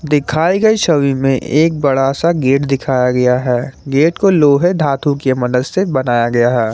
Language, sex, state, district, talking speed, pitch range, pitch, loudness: Hindi, male, Jharkhand, Garhwa, 185 wpm, 125-155 Hz, 140 Hz, -14 LUFS